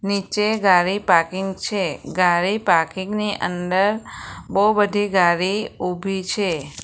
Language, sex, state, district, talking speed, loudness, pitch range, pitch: Gujarati, female, Gujarat, Valsad, 115 wpm, -20 LUFS, 180-205 Hz, 190 Hz